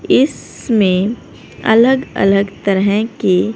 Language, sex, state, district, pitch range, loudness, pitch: Hindi, female, Haryana, Rohtak, 195-225 Hz, -14 LUFS, 205 Hz